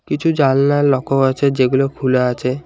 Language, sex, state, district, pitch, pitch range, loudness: Bengali, male, West Bengal, Alipurduar, 135 Hz, 130-140 Hz, -16 LUFS